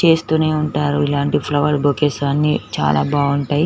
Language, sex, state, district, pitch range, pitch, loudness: Telugu, female, Telangana, Nalgonda, 140-150 Hz, 145 Hz, -17 LUFS